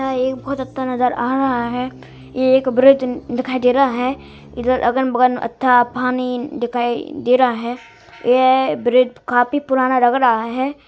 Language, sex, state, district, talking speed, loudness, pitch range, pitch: Hindi, male, Bihar, East Champaran, 185 wpm, -17 LUFS, 245-260 Hz, 255 Hz